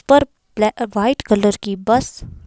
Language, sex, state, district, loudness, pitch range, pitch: Hindi, female, Himachal Pradesh, Shimla, -18 LUFS, 205-255 Hz, 230 Hz